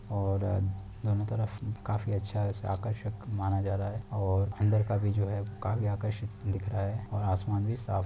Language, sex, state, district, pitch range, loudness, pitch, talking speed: Hindi, male, Uttar Pradesh, Deoria, 100-105 Hz, -32 LUFS, 105 Hz, 200 wpm